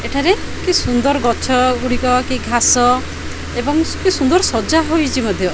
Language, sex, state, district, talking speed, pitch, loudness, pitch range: Odia, female, Odisha, Khordha, 150 wpm, 255 Hz, -15 LUFS, 245-320 Hz